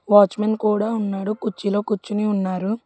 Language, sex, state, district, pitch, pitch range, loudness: Telugu, female, Telangana, Hyderabad, 210 Hz, 200-215 Hz, -21 LUFS